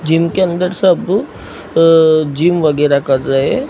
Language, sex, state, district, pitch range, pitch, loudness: Hindi, male, Gujarat, Gandhinagar, 150-175 Hz, 165 Hz, -13 LUFS